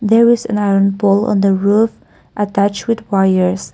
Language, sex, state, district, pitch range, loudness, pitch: English, female, Nagaland, Kohima, 195-220 Hz, -14 LUFS, 200 Hz